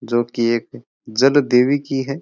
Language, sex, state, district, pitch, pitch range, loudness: Rajasthani, male, Rajasthan, Churu, 130 Hz, 120-140 Hz, -18 LUFS